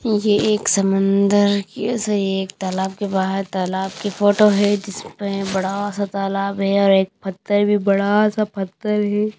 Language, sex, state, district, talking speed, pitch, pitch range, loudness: Hindi, female, Haryana, Rohtak, 165 wpm, 200 Hz, 195-205 Hz, -19 LUFS